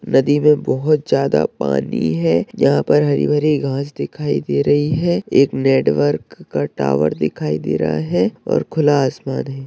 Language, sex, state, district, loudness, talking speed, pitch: Hindi, male, Bihar, Madhepura, -17 LUFS, 160 wpm, 135 Hz